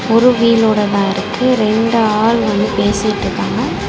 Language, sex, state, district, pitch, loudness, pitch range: Tamil, female, Tamil Nadu, Chennai, 215 Hz, -14 LUFS, 205-230 Hz